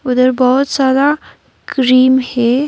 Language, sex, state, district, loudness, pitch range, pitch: Hindi, female, West Bengal, Darjeeling, -12 LUFS, 255-275 Hz, 260 Hz